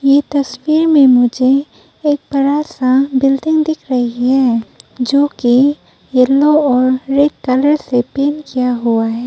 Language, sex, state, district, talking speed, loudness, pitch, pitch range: Hindi, female, Arunachal Pradesh, Papum Pare, 135 wpm, -13 LUFS, 270 Hz, 255-290 Hz